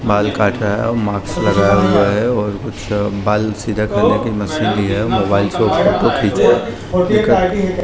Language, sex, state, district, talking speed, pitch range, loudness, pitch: Hindi, male, Maharashtra, Mumbai Suburban, 185 wpm, 100-115 Hz, -15 LUFS, 105 Hz